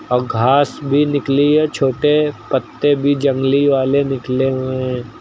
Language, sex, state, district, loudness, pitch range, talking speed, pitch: Hindi, male, Uttar Pradesh, Lucknow, -16 LUFS, 130-145 Hz, 150 wpm, 140 Hz